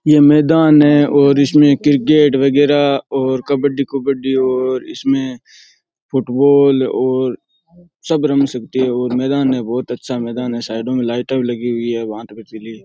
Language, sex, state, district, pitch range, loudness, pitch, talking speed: Rajasthani, male, Rajasthan, Churu, 125-145 Hz, -14 LUFS, 135 Hz, 160 wpm